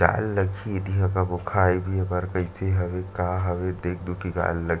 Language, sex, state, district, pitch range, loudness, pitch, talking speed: Chhattisgarhi, male, Chhattisgarh, Sarguja, 90-95 Hz, -26 LUFS, 90 Hz, 210 wpm